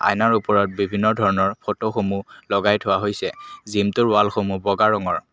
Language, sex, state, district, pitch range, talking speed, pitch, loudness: Assamese, male, Assam, Kamrup Metropolitan, 100-105 Hz, 145 wpm, 100 Hz, -20 LUFS